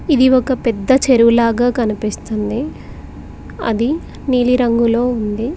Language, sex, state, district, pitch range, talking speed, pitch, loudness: Telugu, female, Telangana, Mahabubabad, 230-260 Hz, 95 wpm, 240 Hz, -15 LUFS